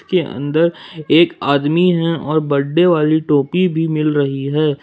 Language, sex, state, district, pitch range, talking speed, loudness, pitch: Hindi, male, Jharkhand, Ranchi, 145-165 Hz, 160 wpm, -15 LUFS, 155 Hz